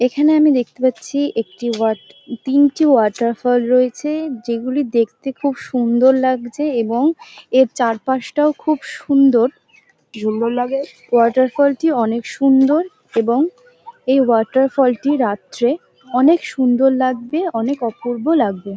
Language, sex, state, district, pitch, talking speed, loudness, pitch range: Bengali, female, West Bengal, North 24 Parganas, 260 Hz, 110 wpm, -17 LUFS, 235-285 Hz